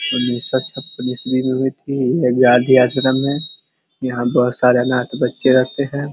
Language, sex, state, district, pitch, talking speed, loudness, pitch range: Hindi, male, Bihar, Vaishali, 130 Hz, 155 wpm, -17 LUFS, 125-130 Hz